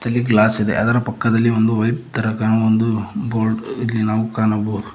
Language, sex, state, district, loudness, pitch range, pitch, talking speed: Kannada, male, Karnataka, Koppal, -18 LUFS, 110-115 Hz, 110 Hz, 170 wpm